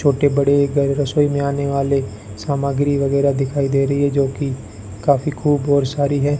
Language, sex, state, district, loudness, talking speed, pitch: Hindi, male, Rajasthan, Bikaner, -18 LUFS, 180 wpm, 140 Hz